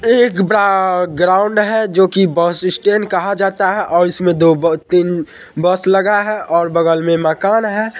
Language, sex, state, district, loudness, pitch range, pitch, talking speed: Hindi, male, Bihar, Purnia, -14 LUFS, 170-205 Hz, 185 Hz, 180 wpm